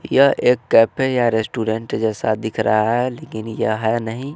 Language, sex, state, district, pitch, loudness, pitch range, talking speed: Hindi, male, Bihar, West Champaran, 115 Hz, -18 LUFS, 110-125 Hz, 180 wpm